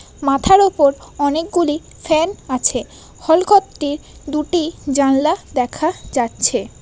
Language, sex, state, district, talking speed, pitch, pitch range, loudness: Bengali, female, West Bengal, Paschim Medinipur, 105 wpm, 305 Hz, 280-335 Hz, -17 LUFS